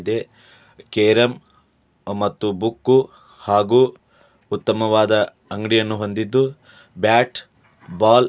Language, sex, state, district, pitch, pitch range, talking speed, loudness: Kannada, male, Karnataka, Dharwad, 110 Hz, 105-120 Hz, 80 wpm, -19 LUFS